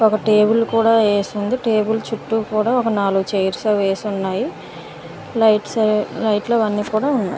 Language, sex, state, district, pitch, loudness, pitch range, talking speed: Telugu, female, Andhra Pradesh, Manyam, 215 Hz, -18 LUFS, 205-225 Hz, 155 wpm